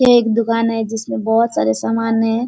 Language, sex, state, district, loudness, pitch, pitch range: Hindi, female, Bihar, Kishanganj, -17 LUFS, 225 Hz, 225-230 Hz